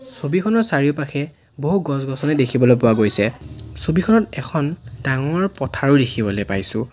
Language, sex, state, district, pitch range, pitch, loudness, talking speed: Assamese, male, Assam, Sonitpur, 115-150 Hz, 140 Hz, -19 LUFS, 120 wpm